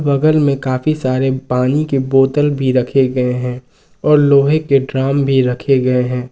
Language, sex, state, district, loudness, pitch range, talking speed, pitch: Hindi, male, Jharkhand, Ranchi, -14 LUFS, 130-140 Hz, 180 wpm, 135 Hz